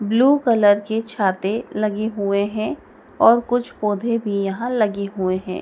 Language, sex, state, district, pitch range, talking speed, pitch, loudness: Hindi, female, Madhya Pradesh, Dhar, 200-230 Hz, 160 wpm, 215 Hz, -20 LUFS